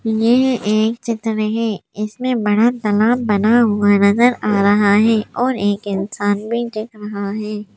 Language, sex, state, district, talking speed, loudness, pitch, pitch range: Hindi, female, Madhya Pradesh, Bhopal, 155 wpm, -17 LUFS, 215 Hz, 205-235 Hz